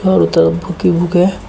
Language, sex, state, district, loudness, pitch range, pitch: Hindi, male, Uttar Pradesh, Shamli, -13 LUFS, 170-185 Hz, 180 Hz